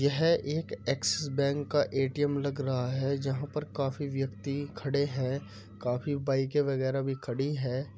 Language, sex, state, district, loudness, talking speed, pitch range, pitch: Hindi, male, Uttar Pradesh, Muzaffarnagar, -31 LUFS, 160 wpm, 130-145 Hz, 135 Hz